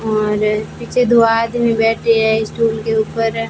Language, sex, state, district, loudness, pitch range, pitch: Hindi, female, Rajasthan, Bikaner, -15 LUFS, 220-230 Hz, 225 Hz